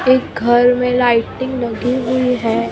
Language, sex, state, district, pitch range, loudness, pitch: Hindi, female, Maharashtra, Mumbai Suburban, 235-255 Hz, -15 LUFS, 245 Hz